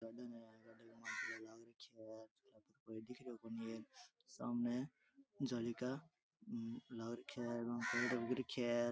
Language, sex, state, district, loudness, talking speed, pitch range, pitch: Rajasthani, male, Rajasthan, Churu, -46 LUFS, 75 wpm, 115-125 Hz, 120 Hz